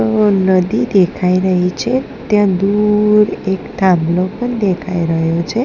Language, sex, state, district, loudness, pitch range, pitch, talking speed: Gujarati, female, Gujarat, Gandhinagar, -14 LUFS, 180-210 Hz, 190 Hz, 130 wpm